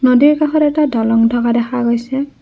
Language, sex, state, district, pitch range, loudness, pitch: Assamese, female, Assam, Kamrup Metropolitan, 235-295 Hz, -14 LUFS, 250 Hz